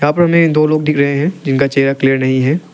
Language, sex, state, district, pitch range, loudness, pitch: Hindi, male, Arunachal Pradesh, Lower Dibang Valley, 135-155 Hz, -13 LUFS, 145 Hz